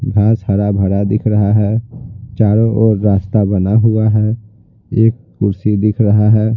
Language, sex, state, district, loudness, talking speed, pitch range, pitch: Hindi, male, Bihar, Patna, -13 LUFS, 155 wpm, 105-110 Hz, 105 Hz